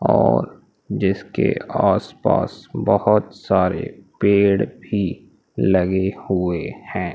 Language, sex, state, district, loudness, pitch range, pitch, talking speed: Hindi, male, Madhya Pradesh, Umaria, -20 LUFS, 95-100 Hz, 95 Hz, 85 wpm